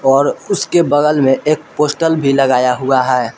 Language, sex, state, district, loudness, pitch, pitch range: Hindi, male, Jharkhand, Palamu, -14 LUFS, 140 Hz, 130-155 Hz